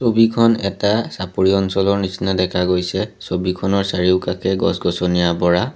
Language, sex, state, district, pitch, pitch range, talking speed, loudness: Assamese, male, Assam, Sonitpur, 95 Hz, 90-100 Hz, 115 wpm, -18 LUFS